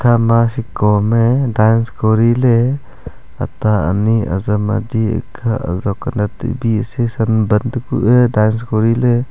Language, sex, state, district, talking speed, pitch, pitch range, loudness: Wancho, male, Arunachal Pradesh, Longding, 155 wpm, 115 Hz, 110-120 Hz, -15 LUFS